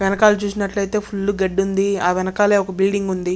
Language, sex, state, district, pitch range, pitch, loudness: Telugu, male, Andhra Pradesh, Chittoor, 190-205 Hz, 195 Hz, -19 LUFS